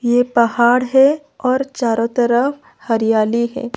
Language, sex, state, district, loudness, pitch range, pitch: Hindi, female, Odisha, Malkangiri, -16 LUFS, 235-265 Hz, 245 Hz